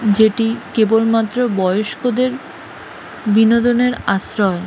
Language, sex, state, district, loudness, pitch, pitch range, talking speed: Bengali, female, West Bengal, Malda, -16 LUFS, 225 Hz, 210-245 Hz, 65 wpm